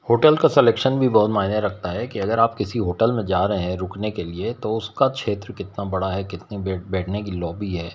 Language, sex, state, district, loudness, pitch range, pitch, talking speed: Hindi, male, Bihar, Patna, -22 LUFS, 95-115 Hz, 100 Hz, 235 wpm